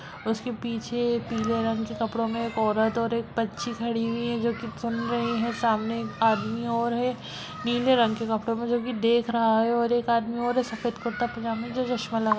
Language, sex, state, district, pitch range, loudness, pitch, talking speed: Hindi, female, Bihar, Lakhisarai, 225-235 Hz, -27 LUFS, 230 Hz, 225 wpm